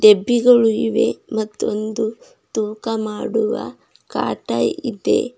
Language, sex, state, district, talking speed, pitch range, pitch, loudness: Kannada, female, Karnataka, Bidar, 80 wpm, 215-230 Hz, 220 Hz, -19 LUFS